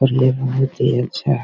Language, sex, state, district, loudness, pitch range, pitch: Hindi, male, Bihar, Begusarai, -18 LUFS, 125-135 Hz, 130 Hz